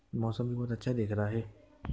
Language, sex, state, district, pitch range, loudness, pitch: Hindi, male, Uttar Pradesh, Hamirpur, 105-120 Hz, -34 LUFS, 115 Hz